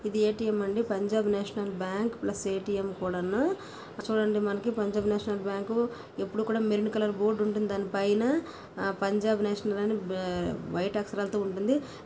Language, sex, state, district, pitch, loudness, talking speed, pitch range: Telugu, female, Telangana, Nalgonda, 210 Hz, -30 LUFS, 140 wpm, 200-215 Hz